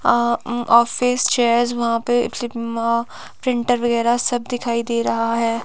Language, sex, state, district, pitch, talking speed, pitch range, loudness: Hindi, female, Himachal Pradesh, Shimla, 235 Hz, 140 wpm, 235-240 Hz, -19 LUFS